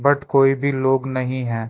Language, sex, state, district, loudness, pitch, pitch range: Hindi, male, Karnataka, Bangalore, -19 LUFS, 135 Hz, 130-140 Hz